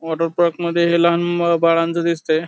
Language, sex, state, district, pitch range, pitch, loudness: Marathi, male, Maharashtra, Pune, 165-170 Hz, 170 Hz, -17 LUFS